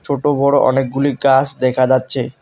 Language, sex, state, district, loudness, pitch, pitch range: Bengali, male, West Bengal, Alipurduar, -15 LUFS, 135 Hz, 130-140 Hz